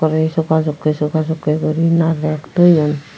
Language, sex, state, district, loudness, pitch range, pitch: Chakma, female, Tripura, Unakoti, -16 LUFS, 155-160 Hz, 155 Hz